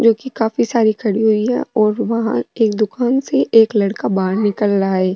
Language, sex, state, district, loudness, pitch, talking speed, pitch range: Rajasthani, female, Rajasthan, Nagaur, -16 LUFS, 220 Hz, 210 wpm, 205-230 Hz